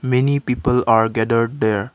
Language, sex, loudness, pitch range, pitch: English, male, -18 LUFS, 110-125 Hz, 120 Hz